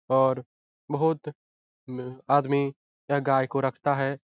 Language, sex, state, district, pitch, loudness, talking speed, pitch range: Hindi, male, Bihar, Jahanabad, 135 Hz, -27 LUFS, 125 wpm, 125-140 Hz